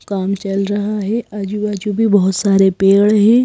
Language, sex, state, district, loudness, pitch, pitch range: Hindi, female, Madhya Pradesh, Bhopal, -15 LUFS, 205 Hz, 195-210 Hz